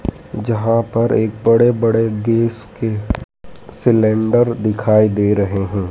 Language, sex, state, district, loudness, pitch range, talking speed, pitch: Hindi, male, Madhya Pradesh, Dhar, -16 LUFS, 105-115 Hz, 120 wpm, 110 Hz